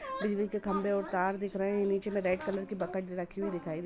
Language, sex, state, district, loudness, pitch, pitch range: Hindi, female, Bihar, Sitamarhi, -33 LUFS, 195 Hz, 185-205 Hz